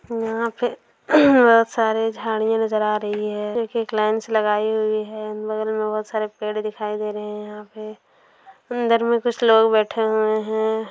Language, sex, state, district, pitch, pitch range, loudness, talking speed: Hindi, female, Bihar, Gaya, 220 Hz, 215-230 Hz, -20 LUFS, 180 wpm